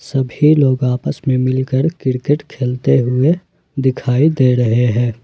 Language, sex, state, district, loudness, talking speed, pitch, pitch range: Hindi, male, Jharkhand, Ranchi, -15 LUFS, 135 wpm, 130 Hz, 125-140 Hz